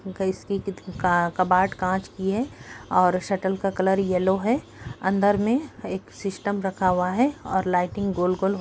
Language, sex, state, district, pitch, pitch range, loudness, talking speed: Hindi, female, Uttar Pradesh, Hamirpur, 190 Hz, 185-200 Hz, -24 LUFS, 155 wpm